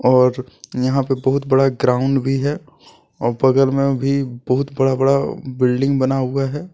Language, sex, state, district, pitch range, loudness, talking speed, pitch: Hindi, male, Jharkhand, Deoghar, 130-135 Hz, -18 LUFS, 170 wpm, 135 Hz